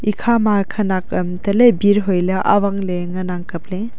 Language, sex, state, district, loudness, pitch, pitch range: Wancho, female, Arunachal Pradesh, Longding, -17 LUFS, 200 Hz, 185-210 Hz